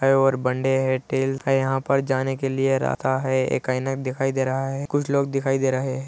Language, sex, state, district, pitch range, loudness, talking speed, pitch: Hindi, male, Andhra Pradesh, Anantapur, 130-135 Hz, -23 LUFS, 215 wpm, 135 Hz